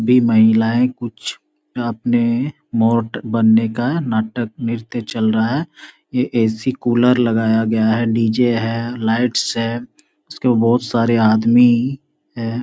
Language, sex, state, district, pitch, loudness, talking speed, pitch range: Hindi, male, Bihar, Darbhanga, 115 Hz, -17 LUFS, 130 wpm, 115-125 Hz